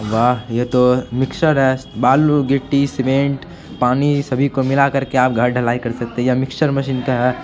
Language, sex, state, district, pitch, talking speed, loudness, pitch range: Hindi, male, Bihar, Supaul, 130 Hz, 195 wpm, -17 LUFS, 125-140 Hz